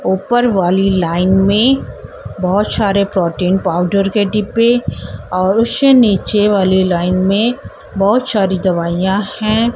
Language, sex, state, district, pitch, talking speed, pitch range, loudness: Hindi, male, Haryana, Jhajjar, 195 Hz, 125 wpm, 185-215 Hz, -14 LUFS